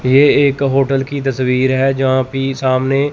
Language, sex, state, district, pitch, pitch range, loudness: Hindi, male, Chandigarh, Chandigarh, 135 Hz, 130-135 Hz, -14 LUFS